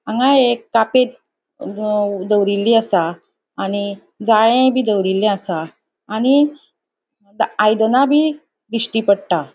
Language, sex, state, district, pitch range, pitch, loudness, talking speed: Konkani, female, Goa, North and South Goa, 200-255 Hz, 220 Hz, -16 LUFS, 95 wpm